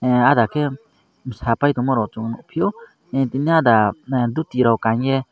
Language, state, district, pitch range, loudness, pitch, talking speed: Kokborok, Tripura, Dhalai, 115-145 Hz, -19 LUFS, 130 Hz, 145 wpm